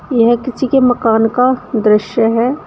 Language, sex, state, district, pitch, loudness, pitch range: Hindi, female, Uttar Pradesh, Shamli, 240 Hz, -13 LUFS, 225-255 Hz